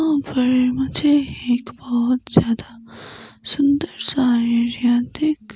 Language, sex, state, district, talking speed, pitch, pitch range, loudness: Hindi, female, Himachal Pradesh, Shimla, 95 wpm, 250 Hz, 240-285 Hz, -19 LUFS